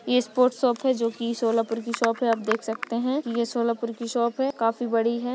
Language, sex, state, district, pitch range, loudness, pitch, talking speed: Hindi, female, Maharashtra, Solapur, 230-250 Hz, -25 LUFS, 235 Hz, 245 wpm